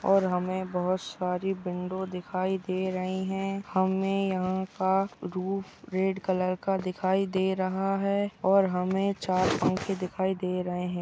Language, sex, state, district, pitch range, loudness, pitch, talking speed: Hindi, female, Uttar Pradesh, Etah, 185-195 Hz, -29 LUFS, 190 Hz, 150 wpm